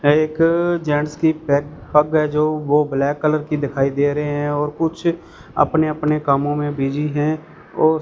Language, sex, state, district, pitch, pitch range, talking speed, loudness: Hindi, male, Punjab, Fazilka, 150 Hz, 145-155 Hz, 180 wpm, -19 LUFS